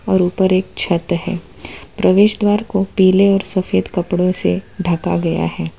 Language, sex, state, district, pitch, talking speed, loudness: Hindi, female, Gujarat, Valsad, 185 Hz, 165 wpm, -16 LUFS